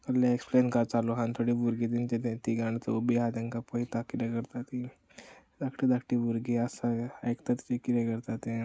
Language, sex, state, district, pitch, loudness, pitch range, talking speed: Konkani, male, Goa, North and South Goa, 120 Hz, -31 LUFS, 115-125 Hz, 180 wpm